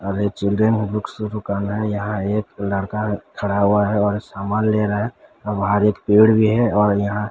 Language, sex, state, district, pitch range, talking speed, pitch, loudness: Hindi, male, Odisha, Sambalpur, 100-105 Hz, 205 wpm, 105 Hz, -19 LUFS